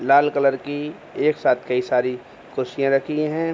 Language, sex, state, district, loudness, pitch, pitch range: Hindi, male, Bihar, Begusarai, -21 LUFS, 140 Hz, 125-150 Hz